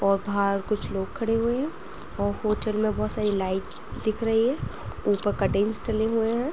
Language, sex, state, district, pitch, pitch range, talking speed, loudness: Hindi, female, Uttar Pradesh, Jyotiba Phule Nagar, 215 Hz, 200-225 Hz, 195 wpm, -26 LUFS